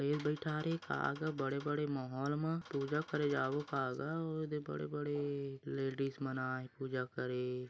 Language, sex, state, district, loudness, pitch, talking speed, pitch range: Chhattisgarhi, male, Chhattisgarh, Bilaspur, -39 LUFS, 140 Hz, 170 wpm, 135-150 Hz